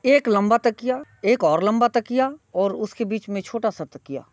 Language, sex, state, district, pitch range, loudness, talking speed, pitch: Hindi, male, Bihar, Muzaffarpur, 200-240 Hz, -22 LUFS, 195 wpm, 225 Hz